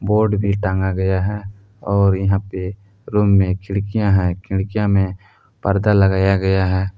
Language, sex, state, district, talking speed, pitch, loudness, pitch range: Hindi, male, Jharkhand, Palamu, 155 wpm, 100 Hz, -18 LUFS, 95-100 Hz